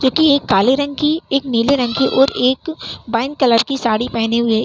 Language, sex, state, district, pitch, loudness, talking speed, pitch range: Hindi, female, Uttar Pradesh, Hamirpur, 260 Hz, -16 LUFS, 245 wpm, 235-280 Hz